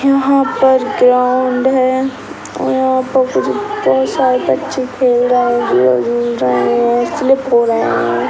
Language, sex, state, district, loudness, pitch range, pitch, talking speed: Hindi, male, Bihar, Sitamarhi, -13 LUFS, 235-260 Hz, 250 Hz, 165 wpm